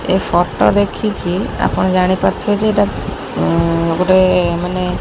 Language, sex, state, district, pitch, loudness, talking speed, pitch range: Odia, female, Odisha, Khordha, 180 Hz, -15 LUFS, 120 wpm, 165-185 Hz